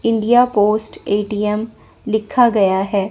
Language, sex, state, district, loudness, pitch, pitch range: Hindi, female, Chandigarh, Chandigarh, -16 LUFS, 210 Hz, 205-225 Hz